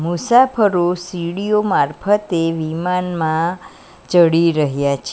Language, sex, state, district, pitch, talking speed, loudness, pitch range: Gujarati, female, Gujarat, Valsad, 175 Hz, 80 wpm, -17 LUFS, 165-190 Hz